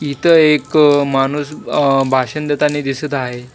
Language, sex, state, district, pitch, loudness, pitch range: Marathi, male, Maharashtra, Washim, 145 Hz, -14 LUFS, 135-150 Hz